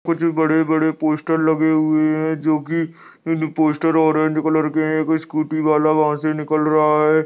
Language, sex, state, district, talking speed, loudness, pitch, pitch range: Hindi, male, Uttar Pradesh, Jyotiba Phule Nagar, 180 wpm, -18 LUFS, 155 Hz, 155-160 Hz